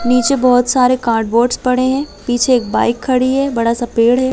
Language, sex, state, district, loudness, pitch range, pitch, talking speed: Hindi, female, Chhattisgarh, Bilaspur, -14 LUFS, 235-255 Hz, 250 Hz, 210 wpm